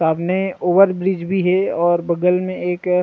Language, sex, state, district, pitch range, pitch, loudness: Chhattisgarhi, male, Chhattisgarh, Rajnandgaon, 175-185 Hz, 180 Hz, -18 LUFS